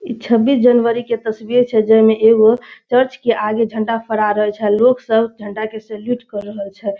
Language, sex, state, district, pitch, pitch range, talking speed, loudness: Hindi, male, Bihar, Darbhanga, 225 Hz, 215-240 Hz, 195 wpm, -15 LUFS